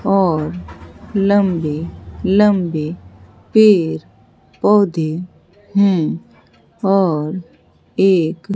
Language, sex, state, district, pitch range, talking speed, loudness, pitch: Hindi, female, Bihar, Katihar, 150-195 Hz, 55 wpm, -16 LUFS, 175 Hz